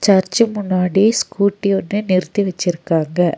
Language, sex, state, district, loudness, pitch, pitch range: Tamil, female, Tamil Nadu, Nilgiris, -17 LUFS, 190 Hz, 180-205 Hz